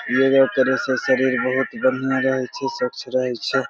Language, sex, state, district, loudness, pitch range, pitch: Maithili, male, Bihar, Begusarai, -20 LUFS, 130-135 Hz, 130 Hz